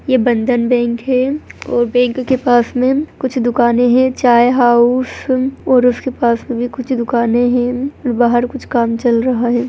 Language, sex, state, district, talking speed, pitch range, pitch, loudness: Hindi, female, Bihar, Begusarai, 175 wpm, 240-255 Hz, 245 Hz, -14 LUFS